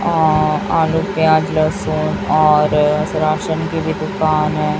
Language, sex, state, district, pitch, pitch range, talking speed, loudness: Hindi, female, Chhattisgarh, Raipur, 155 Hz, 155-160 Hz, 125 wpm, -16 LUFS